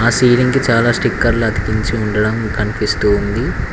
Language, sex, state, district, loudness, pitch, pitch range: Telugu, male, Telangana, Mahabubabad, -15 LUFS, 110 Hz, 105-120 Hz